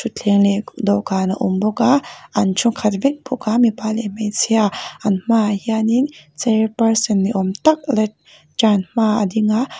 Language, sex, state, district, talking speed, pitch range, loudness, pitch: Mizo, female, Mizoram, Aizawl, 190 wpm, 205-235 Hz, -18 LUFS, 215 Hz